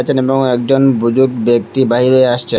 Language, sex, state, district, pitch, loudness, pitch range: Bengali, male, Assam, Hailakandi, 130 Hz, -12 LUFS, 120-135 Hz